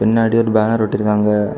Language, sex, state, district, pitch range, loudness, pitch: Tamil, male, Tamil Nadu, Kanyakumari, 105-115 Hz, -15 LUFS, 110 Hz